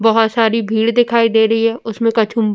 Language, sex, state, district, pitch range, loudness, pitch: Hindi, female, Uttar Pradesh, Jyotiba Phule Nagar, 225-230 Hz, -14 LUFS, 225 Hz